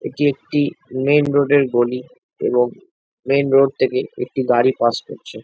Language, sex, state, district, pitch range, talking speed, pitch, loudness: Bengali, male, West Bengal, Jalpaiguri, 125-145 Hz, 155 wpm, 135 Hz, -18 LUFS